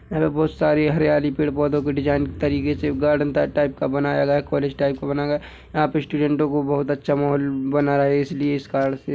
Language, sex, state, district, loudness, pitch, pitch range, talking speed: Hindi, male, Chhattisgarh, Bilaspur, -21 LUFS, 145 Hz, 140-150 Hz, 250 wpm